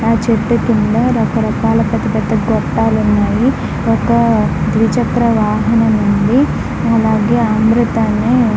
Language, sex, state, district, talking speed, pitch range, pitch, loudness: Telugu, female, Andhra Pradesh, Guntur, 105 wpm, 215-235 Hz, 225 Hz, -13 LUFS